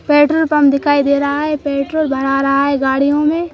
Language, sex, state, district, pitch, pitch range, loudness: Hindi, female, Madhya Pradesh, Bhopal, 285 Hz, 275-300 Hz, -14 LUFS